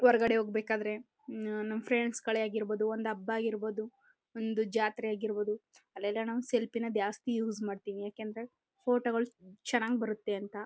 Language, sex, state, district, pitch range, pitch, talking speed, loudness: Kannada, female, Karnataka, Chamarajanagar, 215-230 Hz, 220 Hz, 125 wpm, -34 LUFS